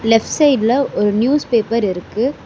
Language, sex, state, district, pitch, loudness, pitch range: Tamil, female, Tamil Nadu, Chennai, 230 Hz, -16 LUFS, 220-270 Hz